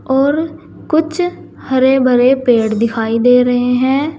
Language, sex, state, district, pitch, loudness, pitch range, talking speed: Hindi, female, Uttar Pradesh, Saharanpur, 260 Hz, -13 LUFS, 245-285 Hz, 130 wpm